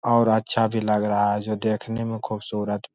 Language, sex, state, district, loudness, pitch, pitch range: Hindi, male, Jharkhand, Sahebganj, -24 LUFS, 110 Hz, 105-115 Hz